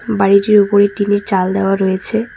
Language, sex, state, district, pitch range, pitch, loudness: Bengali, female, West Bengal, Cooch Behar, 195-210 Hz, 200 Hz, -13 LUFS